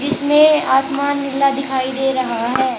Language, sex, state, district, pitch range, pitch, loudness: Hindi, female, Haryana, Charkhi Dadri, 260-285 Hz, 275 Hz, -16 LUFS